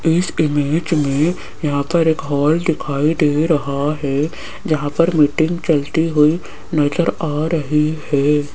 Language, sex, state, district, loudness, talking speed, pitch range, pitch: Hindi, female, Rajasthan, Jaipur, -17 LUFS, 140 wpm, 145-165 Hz, 155 Hz